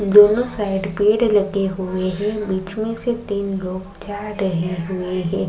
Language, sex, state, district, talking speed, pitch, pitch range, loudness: Hindi, female, Uttarakhand, Tehri Garhwal, 155 wpm, 200 Hz, 185-210 Hz, -20 LUFS